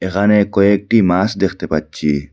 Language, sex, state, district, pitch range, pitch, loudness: Bengali, male, Assam, Hailakandi, 80-100 Hz, 95 Hz, -15 LUFS